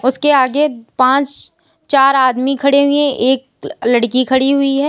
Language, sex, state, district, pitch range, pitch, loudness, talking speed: Hindi, female, Uttar Pradesh, Lalitpur, 255-280 Hz, 270 Hz, -14 LUFS, 145 wpm